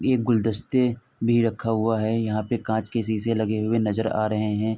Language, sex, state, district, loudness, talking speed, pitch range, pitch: Hindi, male, Uttar Pradesh, Etah, -24 LUFS, 215 wpm, 110-115 Hz, 110 Hz